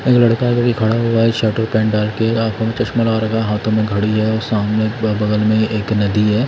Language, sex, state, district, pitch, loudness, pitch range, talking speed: Hindi, male, Delhi, New Delhi, 110 Hz, -16 LUFS, 105-115 Hz, 260 wpm